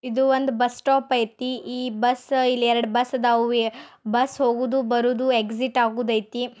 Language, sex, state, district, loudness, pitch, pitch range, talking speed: Kannada, male, Karnataka, Bijapur, -22 LUFS, 245 Hz, 235-255 Hz, 155 wpm